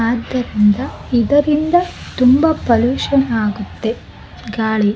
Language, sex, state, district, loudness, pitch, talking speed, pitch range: Kannada, female, Karnataka, Bellary, -16 LUFS, 240 Hz, 75 wpm, 220-275 Hz